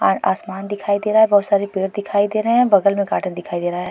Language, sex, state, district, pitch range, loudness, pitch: Hindi, female, Uttar Pradesh, Jalaun, 190-205 Hz, -18 LUFS, 200 Hz